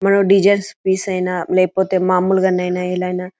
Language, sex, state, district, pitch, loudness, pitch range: Telugu, female, Telangana, Karimnagar, 185 Hz, -16 LUFS, 180-190 Hz